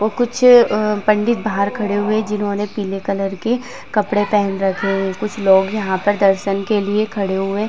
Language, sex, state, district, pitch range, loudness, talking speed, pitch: Hindi, female, Uttar Pradesh, Jalaun, 195-215 Hz, -17 LUFS, 195 wpm, 205 Hz